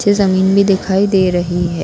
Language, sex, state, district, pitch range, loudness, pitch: Hindi, female, Bihar, Darbhanga, 180-200 Hz, -13 LUFS, 190 Hz